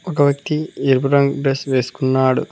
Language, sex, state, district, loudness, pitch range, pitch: Telugu, male, Telangana, Mahabubabad, -18 LUFS, 130-145 Hz, 140 Hz